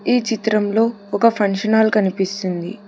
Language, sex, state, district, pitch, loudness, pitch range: Telugu, female, Telangana, Hyderabad, 210 Hz, -18 LUFS, 200-220 Hz